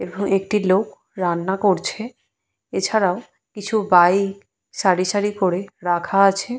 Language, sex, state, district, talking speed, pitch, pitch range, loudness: Bengali, female, West Bengal, Purulia, 120 wpm, 195 Hz, 185-205 Hz, -20 LUFS